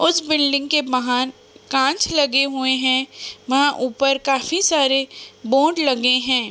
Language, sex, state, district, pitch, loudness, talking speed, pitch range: Hindi, female, Uttar Pradesh, Budaun, 270 Hz, -18 LUFS, 145 wpm, 260-290 Hz